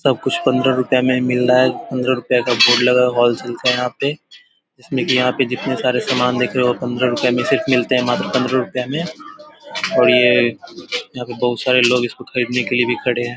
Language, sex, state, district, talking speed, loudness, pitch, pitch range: Hindi, male, Bihar, Vaishali, 200 wpm, -17 LUFS, 125 Hz, 120-130 Hz